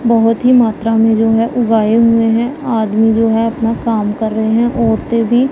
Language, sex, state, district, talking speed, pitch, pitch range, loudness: Hindi, female, Punjab, Pathankot, 205 wpm, 225 Hz, 225-235 Hz, -13 LUFS